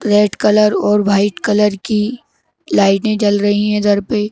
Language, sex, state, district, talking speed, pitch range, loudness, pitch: Hindi, male, Madhya Pradesh, Bhopal, 180 wpm, 205-210 Hz, -14 LUFS, 210 Hz